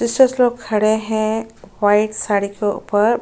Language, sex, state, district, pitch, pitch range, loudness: Hindi, female, Maharashtra, Chandrapur, 215 Hz, 205-230 Hz, -18 LUFS